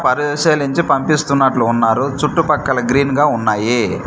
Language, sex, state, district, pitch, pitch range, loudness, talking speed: Telugu, male, Andhra Pradesh, Manyam, 140 Hz, 120-150 Hz, -15 LUFS, 105 wpm